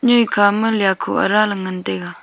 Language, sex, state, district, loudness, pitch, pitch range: Wancho, female, Arunachal Pradesh, Longding, -17 LUFS, 205 Hz, 190-220 Hz